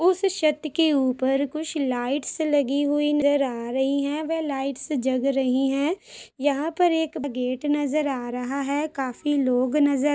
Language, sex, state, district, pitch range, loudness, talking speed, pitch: Hindi, female, Chhattisgarh, Sukma, 270-305 Hz, -24 LUFS, 165 wpm, 285 Hz